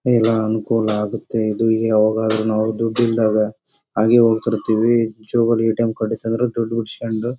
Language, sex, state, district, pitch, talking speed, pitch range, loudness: Kannada, male, Karnataka, Bellary, 115 Hz, 145 wpm, 110-115 Hz, -18 LUFS